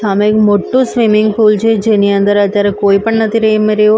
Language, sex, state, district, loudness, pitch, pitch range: Gujarati, female, Maharashtra, Mumbai Suburban, -11 LUFS, 215 Hz, 205-220 Hz